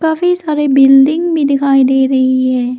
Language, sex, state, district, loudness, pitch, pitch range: Hindi, female, Arunachal Pradesh, Lower Dibang Valley, -11 LUFS, 275 Hz, 265-310 Hz